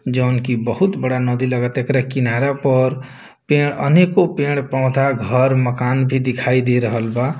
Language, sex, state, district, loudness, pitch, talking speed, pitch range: Bhojpuri, male, Bihar, Muzaffarpur, -17 LUFS, 130 Hz, 155 wpm, 125-140 Hz